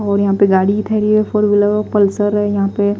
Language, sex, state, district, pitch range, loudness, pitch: Hindi, female, Chhattisgarh, Raipur, 200-210 Hz, -14 LUFS, 205 Hz